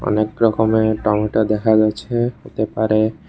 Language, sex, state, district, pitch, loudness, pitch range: Bengali, male, Tripura, West Tripura, 110 Hz, -18 LUFS, 105-110 Hz